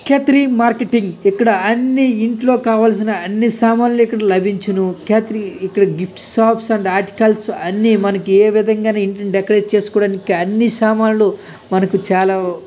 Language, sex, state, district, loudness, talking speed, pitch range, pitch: Telugu, male, Andhra Pradesh, Krishna, -15 LUFS, 135 wpm, 195-225 Hz, 215 Hz